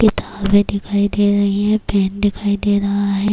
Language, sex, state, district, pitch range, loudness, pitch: Urdu, female, Bihar, Kishanganj, 200-205 Hz, -17 LUFS, 205 Hz